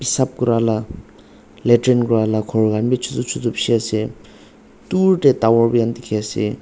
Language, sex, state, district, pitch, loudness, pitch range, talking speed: Nagamese, male, Nagaland, Dimapur, 115 Hz, -18 LUFS, 110-125 Hz, 135 wpm